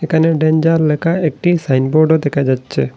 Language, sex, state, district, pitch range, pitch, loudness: Bengali, male, Assam, Hailakandi, 140-165 Hz, 155 Hz, -14 LUFS